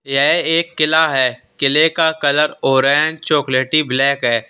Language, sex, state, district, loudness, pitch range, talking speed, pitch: Hindi, male, Uttar Pradesh, Lalitpur, -14 LUFS, 135-160 Hz, 145 wpm, 145 Hz